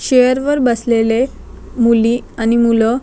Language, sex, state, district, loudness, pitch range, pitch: Marathi, female, Maharashtra, Chandrapur, -14 LUFS, 230-250 Hz, 235 Hz